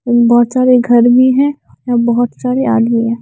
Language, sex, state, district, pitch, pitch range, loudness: Hindi, female, Bihar, Katihar, 240 Hz, 235-255 Hz, -11 LUFS